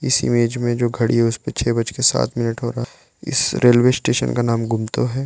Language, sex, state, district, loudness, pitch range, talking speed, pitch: Hindi, male, Arunachal Pradesh, Lower Dibang Valley, -18 LUFS, 115-125 Hz, 250 wpm, 120 Hz